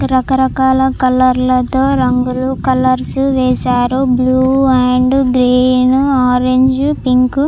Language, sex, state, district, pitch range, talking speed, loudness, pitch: Telugu, female, Andhra Pradesh, Chittoor, 255-265 Hz, 95 wpm, -12 LUFS, 255 Hz